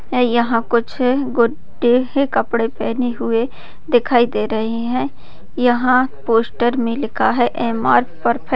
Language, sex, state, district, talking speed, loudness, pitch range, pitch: Hindi, female, Bihar, Madhepura, 135 wpm, -17 LUFS, 230-250 Hz, 240 Hz